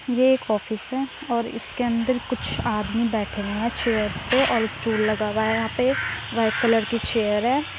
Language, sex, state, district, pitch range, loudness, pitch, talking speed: Hindi, female, Uttar Pradesh, Muzaffarnagar, 220-250 Hz, -23 LUFS, 230 Hz, 200 wpm